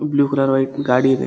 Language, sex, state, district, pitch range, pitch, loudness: Kannada, male, Karnataka, Gulbarga, 135-140 Hz, 135 Hz, -17 LUFS